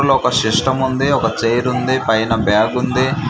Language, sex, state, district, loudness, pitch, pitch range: Telugu, male, Andhra Pradesh, Manyam, -16 LUFS, 125 Hz, 115-130 Hz